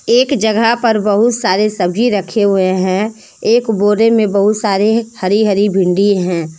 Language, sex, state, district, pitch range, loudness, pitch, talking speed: Hindi, female, Jharkhand, Deoghar, 195-225 Hz, -13 LUFS, 210 Hz, 175 wpm